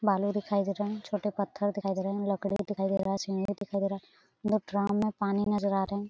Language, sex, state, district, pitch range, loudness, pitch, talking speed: Hindi, female, Bihar, Saran, 195-205 Hz, -31 LUFS, 200 Hz, 275 wpm